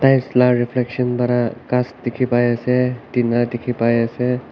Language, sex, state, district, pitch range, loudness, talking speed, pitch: Nagamese, male, Nagaland, Kohima, 120-125 Hz, -18 LUFS, 145 wpm, 125 Hz